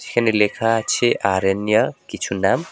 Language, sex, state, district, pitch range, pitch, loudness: Bengali, male, West Bengal, Alipurduar, 100-115 Hz, 110 Hz, -19 LUFS